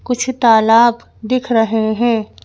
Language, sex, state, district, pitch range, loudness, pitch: Hindi, female, Madhya Pradesh, Bhopal, 225-245 Hz, -14 LUFS, 230 Hz